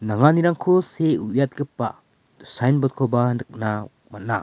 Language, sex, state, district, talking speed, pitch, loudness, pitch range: Garo, male, Meghalaya, West Garo Hills, 95 wpm, 130 Hz, -21 LUFS, 115-150 Hz